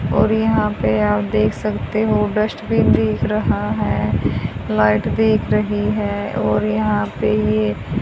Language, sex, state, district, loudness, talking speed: Hindi, female, Haryana, Charkhi Dadri, -18 LUFS, 140 wpm